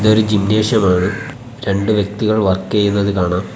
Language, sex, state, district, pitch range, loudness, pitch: Malayalam, male, Kerala, Kollam, 100-110 Hz, -16 LUFS, 105 Hz